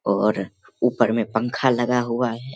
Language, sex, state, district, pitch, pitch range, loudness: Hindi, male, Bihar, Begusarai, 120 Hz, 110-125 Hz, -22 LUFS